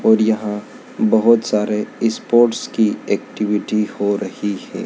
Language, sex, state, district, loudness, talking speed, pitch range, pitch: Hindi, male, Madhya Pradesh, Dhar, -18 LUFS, 125 wpm, 105-115 Hz, 110 Hz